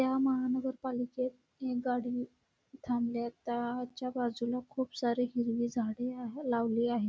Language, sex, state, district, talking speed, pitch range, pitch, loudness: Marathi, female, Karnataka, Belgaum, 125 wpm, 235-255 Hz, 245 Hz, -34 LUFS